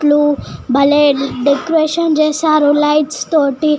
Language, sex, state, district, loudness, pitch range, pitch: Telugu, female, Telangana, Nalgonda, -13 LUFS, 285-310 Hz, 295 Hz